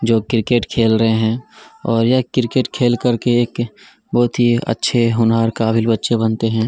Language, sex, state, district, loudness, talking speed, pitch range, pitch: Hindi, male, Chhattisgarh, Kabirdham, -17 LUFS, 170 wpm, 115-120 Hz, 115 Hz